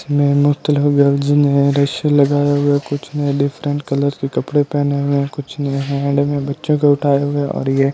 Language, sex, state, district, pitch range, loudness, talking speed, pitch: Hindi, male, Delhi, New Delhi, 140-145 Hz, -16 LUFS, 220 wpm, 140 Hz